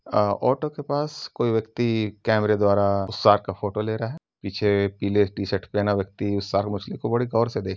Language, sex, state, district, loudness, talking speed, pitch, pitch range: Hindi, male, Uttar Pradesh, Gorakhpur, -24 LUFS, 215 wpm, 105 Hz, 100-115 Hz